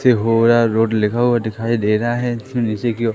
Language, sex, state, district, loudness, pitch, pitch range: Hindi, male, Madhya Pradesh, Katni, -17 LUFS, 115 Hz, 110-120 Hz